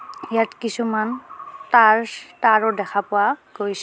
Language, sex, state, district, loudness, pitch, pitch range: Assamese, female, Assam, Kamrup Metropolitan, -19 LUFS, 220 Hz, 205-235 Hz